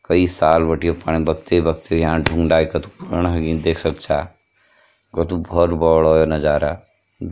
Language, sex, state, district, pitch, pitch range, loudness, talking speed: Hindi, male, Uttarakhand, Uttarkashi, 80 Hz, 80-85 Hz, -18 LUFS, 100 wpm